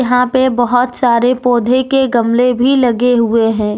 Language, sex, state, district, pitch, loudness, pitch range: Hindi, female, Jharkhand, Deoghar, 245 Hz, -12 LUFS, 235-255 Hz